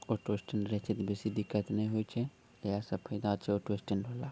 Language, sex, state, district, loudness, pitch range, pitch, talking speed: Maithili, male, Bihar, Sitamarhi, -36 LUFS, 100-110 Hz, 105 Hz, 265 wpm